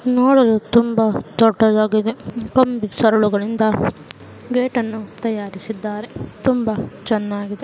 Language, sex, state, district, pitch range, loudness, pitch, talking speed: Kannada, female, Karnataka, Mysore, 215-235 Hz, -18 LUFS, 220 Hz, 80 wpm